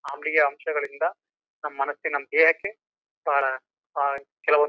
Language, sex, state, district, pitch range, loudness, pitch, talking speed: Kannada, male, Karnataka, Chamarajanagar, 140-155 Hz, -25 LUFS, 145 Hz, 75 wpm